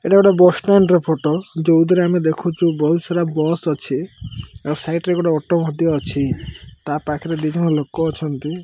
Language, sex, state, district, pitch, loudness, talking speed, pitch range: Odia, male, Odisha, Malkangiri, 160 Hz, -18 LUFS, 180 wpm, 150-175 Hz